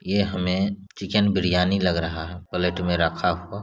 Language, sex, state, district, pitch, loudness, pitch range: Hindi, male, Bihar, Saran, 90 Hz, -23 LUFS, 90-100 Hz